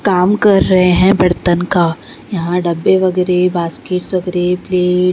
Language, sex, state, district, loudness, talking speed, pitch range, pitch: Hindi, female, Bihar, Patna, -13 LUFS, 115 wpm, 175-185 Hz, 180 Hz